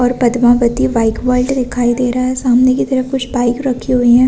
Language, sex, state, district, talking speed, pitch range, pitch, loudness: Hindi, female, Chhattisgarh, Rajnandgaon, 225 wpm, 240-255 Hz, 250 Hz, -14 LUFS